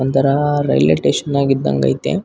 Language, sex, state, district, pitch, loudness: Kannada, male, Karnataka, Bellary, 135 Hz, -16 LUFS